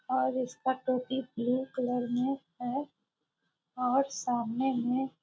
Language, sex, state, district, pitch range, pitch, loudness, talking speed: Maithili, female, Bihar, Muzaffarpur, 245-265 Hz, 255 Hz, -32 LUFS, 115 wpm